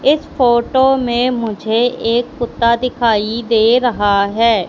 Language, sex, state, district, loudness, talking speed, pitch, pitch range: Hindi, female, Madhya Pradesh, Katni, -15 LUFS, 130 wpm, 235 Hz, 225-245 Hz